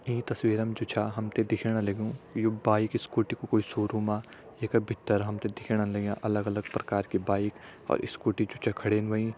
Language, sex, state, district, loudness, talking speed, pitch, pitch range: Hindi, male, Uttarakhand, Tehri Garhwal, -30 LUFS, 205 wpm, 110 Hz, 105-115 Hz